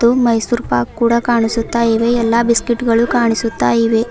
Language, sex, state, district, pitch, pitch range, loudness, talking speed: Kannada, female, Karnataka, Bidar, 235 Hz, 230-235 Hz, -15 LUFS, 100 wpm